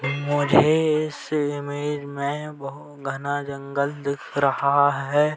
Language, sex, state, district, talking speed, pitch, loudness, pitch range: Hindi, male, Uttar Pradesh, Gorakhpur, 110 wpm, 145 Hz, -23 LUFS, 140-150 Hz